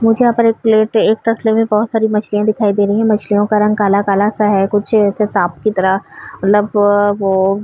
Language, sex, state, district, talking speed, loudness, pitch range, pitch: Hindi, female, Uttar Pradesh, Varanasi, 220 wpm, -14 LUFS, 205-220 Hz, 210 Hz